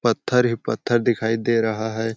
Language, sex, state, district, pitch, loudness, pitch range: Hindi, male, Chhattisgarh, Sarguja, 115 Hz, -21 LUFS, 110-120 Hz